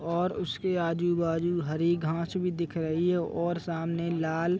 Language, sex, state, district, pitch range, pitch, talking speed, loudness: Hindi, male, Chhattisgarh, Raigarh, 165-175 Hz, 170 Hz, 170 wpm, -29 LUFS